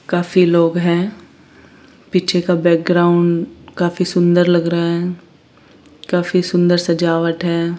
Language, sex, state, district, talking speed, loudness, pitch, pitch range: Hindi, female, Chandigarh, Chandigarh, 115 wpm, -16 LUFS, 175 Hz, 170-180 Hz